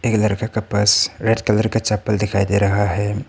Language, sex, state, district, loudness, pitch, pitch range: Hindi, male, Arunachal Pradesh, Papum Pare, -18 LUFS, 105 Hz, 100-110 Hz